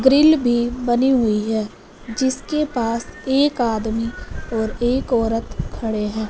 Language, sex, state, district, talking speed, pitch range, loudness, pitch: Hindi, female, Punjab, Fazilka, 135 wpm, 220-260 Hz, -20 LUFS, 235 Hz